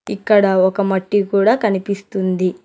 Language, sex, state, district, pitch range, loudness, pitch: Telugu, male, Telangana, Hyderabad, 190-205 Hz, -16 LUFS, 200 Hz